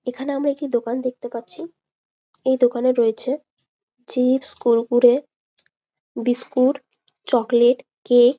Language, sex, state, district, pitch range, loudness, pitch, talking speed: Bengali, female, West Bengal, Malda, 245-270 Hz, -20 LUFS, 250 Hz, 105 wpm